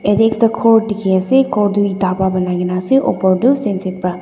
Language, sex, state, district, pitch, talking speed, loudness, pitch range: Nagamese, female, Nagaland, Dimapur, 200 Hz, 215 wpm, -15 LUFS, 185-225 Hz